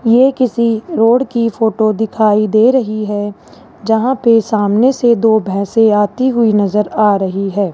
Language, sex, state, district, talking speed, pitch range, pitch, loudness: Hindi, male, Rajasthan, Jaipur, 165 wpm, 210-235 Hz, 220 Hz, -13 LUFS